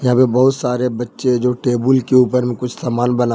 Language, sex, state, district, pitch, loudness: Hindi, male, Jharkhand, Ranchi, 125 Hz, -16 LUFS